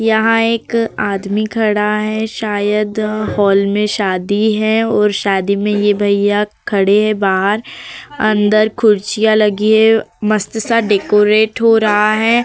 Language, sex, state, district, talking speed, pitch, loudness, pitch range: Hindi, female, Uttar Pradesh, Varanasi, 130 wpm, 210 Hz, -14 LUFS, 205-220 Hz